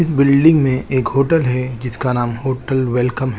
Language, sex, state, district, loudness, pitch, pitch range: Hindi, male, Chandigarh, Chandigarh, -16 LUFS, 130 Hz, 125-140 Hz